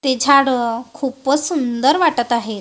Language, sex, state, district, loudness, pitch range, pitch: Marathi, female, Maharashtra, Gondia, -17 LUFS, 240-280 Hz, 260 Hz